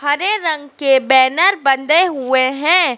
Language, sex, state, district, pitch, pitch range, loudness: Hindi, female, Madhya Pradesh, Dhar, 285 Hz, 265-345 Hz, -14 LUFS